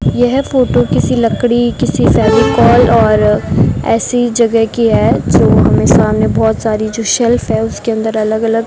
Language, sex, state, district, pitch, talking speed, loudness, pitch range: Hindi, female, Rajasthan, Bikaner, 230 Hz, 165 wpm, -11 LUFS, 220-240 Hz